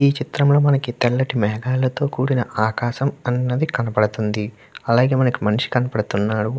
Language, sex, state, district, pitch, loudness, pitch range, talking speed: Telugu, male, Andhra Pradesh, Krishna, 125 Hz, -20 LUFS, 110-135 Hz, 120 wpm